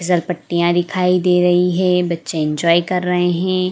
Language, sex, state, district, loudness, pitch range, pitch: Hindi, female, Jharkhand, Sahebganj, -16 LUFS, 170-180 Hz, 180 Hz